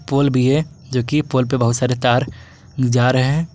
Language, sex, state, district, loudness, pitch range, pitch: Hindi, male, Jharkhand, Garhwa, -17 LUFS, 125-140 Hz, 130 Hz